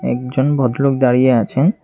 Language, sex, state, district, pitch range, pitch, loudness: Bengali, male, Tripura, West Tripura, 125-140 Hz, 130 Hz, -15 LUFS